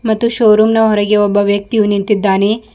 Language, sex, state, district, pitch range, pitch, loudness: Kannada, female, Karnataka, Bidar, 205-220 Hz, 210 Hz, -12 LUFS